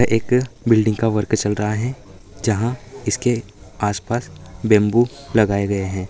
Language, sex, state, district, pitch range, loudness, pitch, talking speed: Hindi, male, Chhattisgarh, Bilaspur, 100-120 Hz, -20 LUFS, 110 Hz, 145 wpm